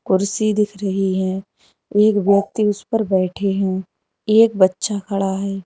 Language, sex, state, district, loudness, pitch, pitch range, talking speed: Hindi, female, Uttar Pradesh, Lalitpur, -18 LUFS, 200 Hz, 190-210 Hz, 150 wpm